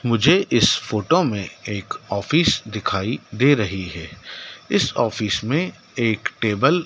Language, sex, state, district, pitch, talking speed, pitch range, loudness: Hindi, male, Madhya Pradesh, Dhar, 115 Hz, 140 wpm, 100-140 Hz, -20 LUFS